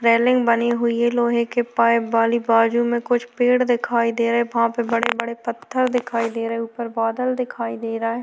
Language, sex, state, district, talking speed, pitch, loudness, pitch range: Hindi, female, Chhattisgarh, Korba, 210 wpm, 235 Hz, -20 LUFS, 230-240 Hz